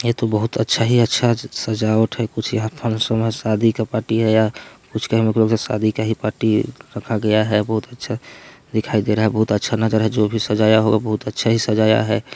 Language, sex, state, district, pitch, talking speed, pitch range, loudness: Hindi, male, Chhattisgarh, Balrampur, 110 Hz, 230 wpm, 110-115 Hz, -19 LUFS